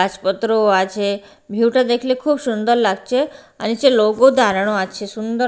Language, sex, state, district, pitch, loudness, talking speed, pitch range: Bengali, female, Bihar, Katihar, 225 Hz, -17 LUFS, 155 wpm, 200-255 Hz